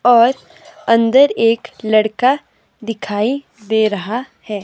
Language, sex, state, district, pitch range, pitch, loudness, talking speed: Hindi, female, Himachal Pradesh, Shimla, 215-260 Hz, 230 Hz, -16 LUFS, 105 wpm